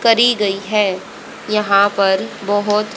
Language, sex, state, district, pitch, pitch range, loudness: Hindi, female, Haryana, Rohtak, 205 Hz, 200-215 Hz, -16 LUFS